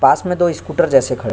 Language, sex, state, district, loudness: Hindi, male, Uttar Pradesh, Jyotiba Phule Nagar, -16 LUFS